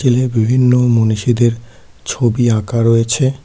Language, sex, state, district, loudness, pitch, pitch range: Bengali, male, West Bengal, Cooch Behar, -14 LUFS, 120 Hz, 115-125 Hz